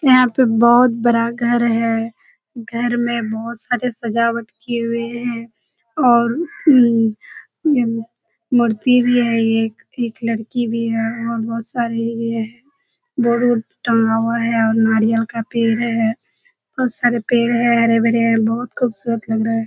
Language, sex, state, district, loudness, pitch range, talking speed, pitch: Hindi, female, Bihar, Kishanganj, -17 LUFS, 230-245 Hz, 150 wpm, 235 Hz